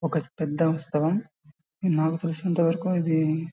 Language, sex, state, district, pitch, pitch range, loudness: Telugu, male, Karnataka, Bellary, 165 Hz, 155-170 Hz, -26 LUFS